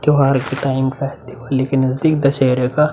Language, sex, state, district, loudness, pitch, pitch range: Hindi, male, Uttar Pradesh, Budaun, -17 LUFS, 135 Hz, 130-140 Hz